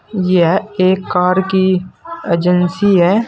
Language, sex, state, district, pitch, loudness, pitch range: Hindi, male, Uttar Pradesh, Saharanpur, 185 Hz, -14 LUFS, 180-200 Hz